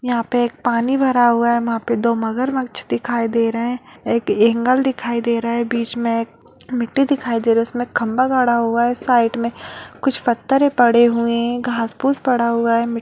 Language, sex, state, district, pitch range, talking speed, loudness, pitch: Hindi, female, Bihar, Purnia, 230-250 Hz, 220 wpm, -18 LUFS, 235 Hz